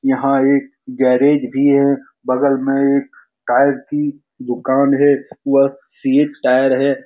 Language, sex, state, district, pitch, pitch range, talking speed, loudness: Hindi, male, Bihar, Saran, 140 Hz, 135-140 Hz, 135 wpm, -16 LUFS